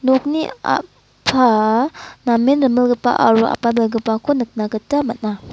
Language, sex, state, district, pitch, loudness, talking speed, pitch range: Garo, female, Meghalaya, West Garo Hills, 240 Hz, -17 LUFS, 100 wpm, 225-265 Hz